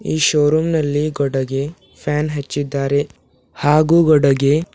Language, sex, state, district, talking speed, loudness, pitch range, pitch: Kannada, female, Karnataka, Bidar, 115 wpm, -17 LUFS, 140-155 Hz, 145 Hz